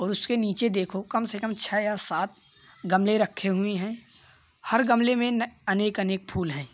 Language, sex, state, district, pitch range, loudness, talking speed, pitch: Hindi, male, Uttar Pradesh, Varanasi, 190-230 Hz, -26 LUFS, 185 wpm, 210 Hz